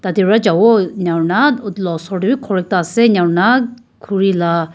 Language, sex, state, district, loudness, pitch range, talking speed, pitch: Nagamese, female, Nagaland, Kohima, -14 LUFS, 175-230 Hz, 215 wpm, 195 Hz